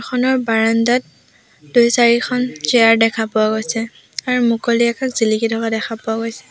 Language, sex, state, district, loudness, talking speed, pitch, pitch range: Assamese, female, Assam, Sonitpur, -16 LUFS, 145 wpm, 230 Hz, 225-245 Hz